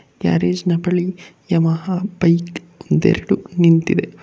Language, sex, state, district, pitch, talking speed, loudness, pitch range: Kannada, male, Karnataka, Bangalore, 175 Hz, 100 wpm, -18 LUFS, 165-185 Hz